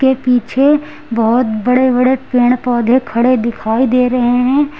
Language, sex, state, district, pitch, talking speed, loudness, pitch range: Hindi, female, Uttar Pradesh, Lucknow, 250 Hz, 150 wpm, -13 LUFS, 240-260 Hz